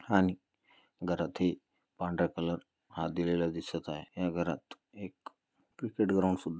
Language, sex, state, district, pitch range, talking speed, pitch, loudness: Marathi, male, Maharashtra, Pune, 85-95 Hz, 110 wpm, 85 Hz, -34 LUFS